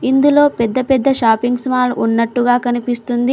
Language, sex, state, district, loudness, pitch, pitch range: Telugu, female, Telangana, Mahabubabad, -15 LUFS, 245 Hz, 240-260 Hz